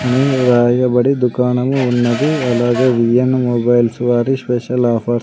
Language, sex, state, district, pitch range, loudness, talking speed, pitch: Telugu, male, Andhra Pradesh, Sri Satya Sai, 120-130 Hz, -14 LUFS, 140 wpm, 125 Hz